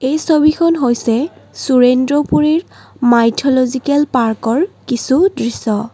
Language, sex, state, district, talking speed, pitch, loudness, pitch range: Assamese, female, Assam, Kamrup Metropolitan, 90 wpm, 260 Hz, -14 LUFS, 240-300 Hz